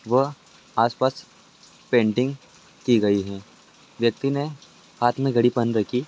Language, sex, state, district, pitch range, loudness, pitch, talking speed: Angika, male, Bihar, Madhepura, 115-135 Hz, -23 LUFS, 120 Hz, 130 wpm